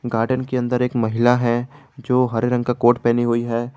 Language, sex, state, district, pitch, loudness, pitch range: Hindi, male, Jharkhand, Garhwa, 120 Hz, -19 LUFS, 120-125 Hz